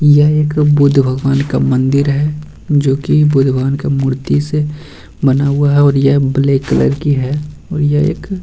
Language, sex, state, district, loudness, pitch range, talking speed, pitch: Hindi, male, Bihar, Bhagalpur, -13 LUFS, 135-150 Hz, 185 wpm, 145 Hz